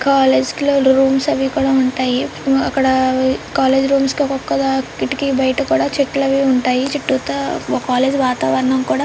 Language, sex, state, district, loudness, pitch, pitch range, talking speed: Telugu, female, Andhra Pradesh, Chittoor, -16 LUFS, 265 Hz, 255-275 Hz, 140 wpm